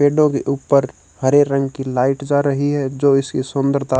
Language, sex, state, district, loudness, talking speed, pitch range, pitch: Hindi, male, Chhattisgarh, Raipur, -17 LUFS, 195 wpm, 135-145 Hz, 140 Hz